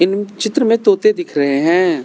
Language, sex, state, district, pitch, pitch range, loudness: Hindi, male, Arunachal Pradesh, Lower Dibang Valley, 200 Hz, 170-265 Hz, -15 LUFS